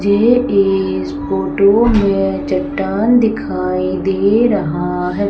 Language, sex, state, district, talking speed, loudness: Hindi, female, Madhya Pradesh, Umaria, 100 wpm, -15 LUFS